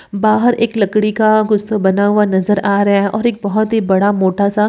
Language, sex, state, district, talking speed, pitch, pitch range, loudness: Hindi, female, Uttar Pradesh, Jyotiba Phule Nagar, 230 wpm, 210 Hz, 200-215 Hz, -14 LUFS